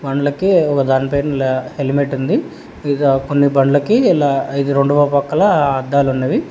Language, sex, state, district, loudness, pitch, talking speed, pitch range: Telugu, male, Telangana, Hyderabad, -15 LUFS, 140 Hz, 130 wpm, 135-145 Hz